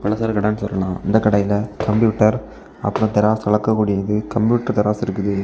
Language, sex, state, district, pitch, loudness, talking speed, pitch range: Tamil, male, Tamil Nadu, Kanyakumari, 105 Hz, -18 LUFS, 120 wpm, 105-110 Hz